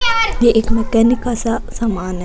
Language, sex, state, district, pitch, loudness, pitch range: Rajasthani, female, Rajasthan, Nagaur, 230 Hz, -16 LUFS, 225-245 Hz